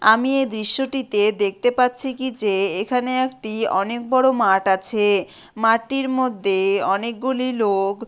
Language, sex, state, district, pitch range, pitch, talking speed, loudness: Bengali, female, West Bengal, Malda, 200-255 Hz, 225 Hz, 125 wpm, -19 LUFS